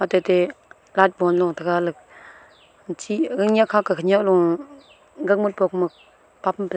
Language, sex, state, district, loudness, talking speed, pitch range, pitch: Wancho, female, Arunachal Pradesh, Longding, -21 LUFS, 160 wpm, 180-200 Hz, 190 Hz